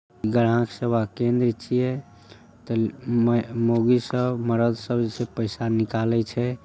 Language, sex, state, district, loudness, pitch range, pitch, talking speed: Maithili, male, Bihar, Saharsa, -24 LUFS, 115-120 Hz, 115 Hz, 125 wpm